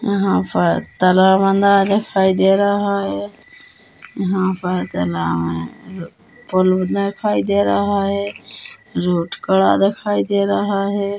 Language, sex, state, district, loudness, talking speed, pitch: Hindi, female, Chhattisgarh, Korba, -17 LUFS, 125 wpm, 190 Hz